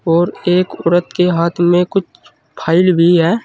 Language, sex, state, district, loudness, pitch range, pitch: Hindi, male, Uttar Pradesh, Saharanpur, -14 LUFS, 170-180 Hz, 175 Hz